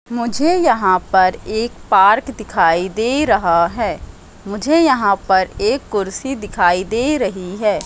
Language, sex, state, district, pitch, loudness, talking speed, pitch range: Hindi, female, Madhya Pradesh, Katni, 210 Hz, -16 LUFS, 135 wpm, 185-255 Hz